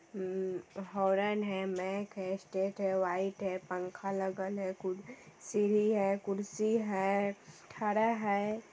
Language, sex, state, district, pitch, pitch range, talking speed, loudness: Maithili, female, Bihar, Vaishali, 195 Hz, 190-205 Hz, 125 wpm, -34 LUFS